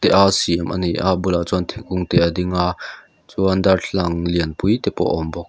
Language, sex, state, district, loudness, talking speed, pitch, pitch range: Mizo, male, Mizoram, Aizawl, -19 LUFS, 205 wpm, 90 Hz, 85-95 Hz